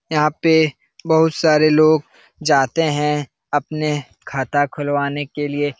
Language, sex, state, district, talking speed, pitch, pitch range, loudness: Hindi, male, Bihar, Jahanabad, 135 wpm, 150 Hz, 145-155 Hz, -18 LUFS